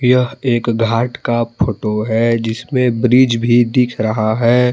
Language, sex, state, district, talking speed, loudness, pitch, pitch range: Hindi, male, Jharkhand, Palamu, 150 wpm, -15 LUFS, 120 Hz, 115-125 Hz